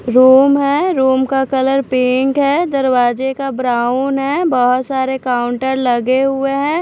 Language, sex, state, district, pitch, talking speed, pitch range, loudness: Hindi, female, Maharashtra, Washim, 265 Hz, 150 wpm, 255-275 Hz, -14 LUFS